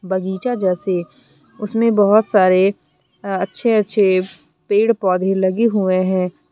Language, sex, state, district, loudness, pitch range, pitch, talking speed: Hindi, female, Jharkhand, Deoghar, -17 LUFS, 185-210 Hz, 190 Hz, 110 wpm